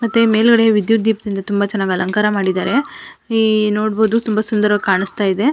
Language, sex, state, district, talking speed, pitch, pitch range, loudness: Kannada, female, Karnataka, Mysore, 140 wpm, 215 Hz, 200-225 Hz, -16 LUFS